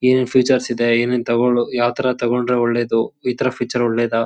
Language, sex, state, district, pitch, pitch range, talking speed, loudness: Kannada, male, Karnataka, Shimoga, 120 Hz, 120-125 Hz, 210 wpm, -18 LUFS